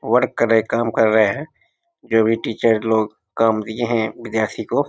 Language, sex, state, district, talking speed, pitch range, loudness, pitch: Maithili, male, Bihar, Samastipur, 220 wpm, 110-120 Hz, -19 LUFS, 115 Hz